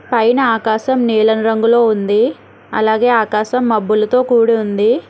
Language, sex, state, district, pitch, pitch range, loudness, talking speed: Telugu, female, Telangana, Hyderabad, 225 Hz, 220-240 Hz, -14 LUFS, 120 wpm